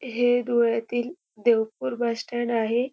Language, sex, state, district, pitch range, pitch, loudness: Marathi, female, Maharashtra, Dhule, 230-245 Hz, 240 Hz, -25 LUFS